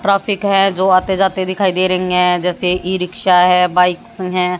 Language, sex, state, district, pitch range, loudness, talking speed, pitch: Hindi, female, Haryana, Jhajjar, 180-195 Hz, -14 LUFS, 195 wpm, 185 Hz